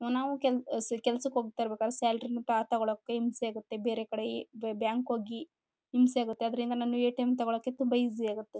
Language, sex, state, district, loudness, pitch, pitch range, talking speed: Kannada, female, Karnataka, Chamarajanagar, -32 LUFS, 235 Hz, 225-245 Hz, 155 wpm